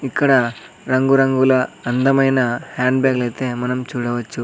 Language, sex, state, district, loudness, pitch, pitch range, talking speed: Telugu, male, Andhra Pradesh, Sri Satya Sai, -18 LUFS, 130 Hz, 120-135 Hz, 95 wpm